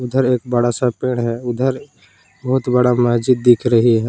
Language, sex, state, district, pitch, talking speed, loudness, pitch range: Hindi, male, Jharkhand, Palamu, 125 Hz, 190 wpm, -16 LUFS, 120-125 Hz